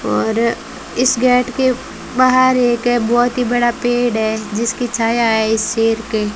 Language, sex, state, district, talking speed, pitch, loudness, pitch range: Hindi, female, Rajasthan, Bikaner, 180 wpm, 240 Hz, -16 LUFS, 225-250 Hz